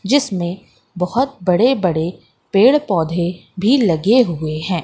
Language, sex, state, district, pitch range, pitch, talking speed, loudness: Hindi, female, Madhya Pradesh, Katni, 175-240 Hz, 185 Hz, 125 wpm, -17 LUFS